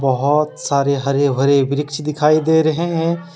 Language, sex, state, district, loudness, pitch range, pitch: Hindi, male, Jharkhand, Deoghar, -17 LUFS, 140-160 Hz, 150 Hz